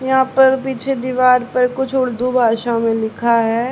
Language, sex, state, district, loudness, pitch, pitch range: Hindi, female, Haryana, Charkhi Dadri, -16 LUFS, 250 Hz, 235-265 Hz